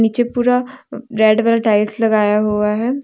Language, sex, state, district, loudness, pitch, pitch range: Hindi, female, Jharkhand, Deoghar, -15 LUFS, 225 Hz, 215-240 Hz